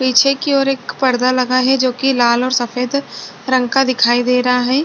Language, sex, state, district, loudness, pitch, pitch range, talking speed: Hindi, female, Chhattisgarh, Bastar, -15 LUFS, 255 Hz, 250-270 Hz, 225 wpm